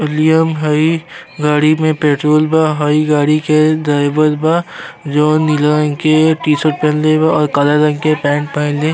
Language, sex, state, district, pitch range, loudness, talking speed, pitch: Bhojpuri, male, Uttar Pradesh, Deoria, 150-155 Hz, -13 LUFS, 170 wpm, 155 Hz